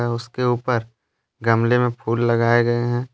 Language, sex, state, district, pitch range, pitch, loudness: Hindi, male, Jharkhand, Deoghar, 115-120 Hz, 120 Hz, -20 LUFS